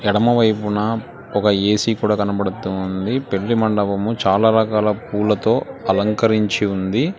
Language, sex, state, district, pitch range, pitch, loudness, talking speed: Telugu, male, Telangana, Hyderabad, 100-110 Hz, 105 Hz, -18 LUFS, 100 wpm